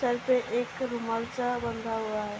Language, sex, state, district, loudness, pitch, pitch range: Hindi, female, Uttar Pradesh, Hamirpur, -30 LUFS, 235 Hz, 225-245 Hz